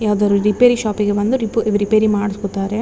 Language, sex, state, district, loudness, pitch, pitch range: Kannada, female, Karnataka, Dakshina Kannada, -16 LUFS, 210 Hz, 205-220 Hz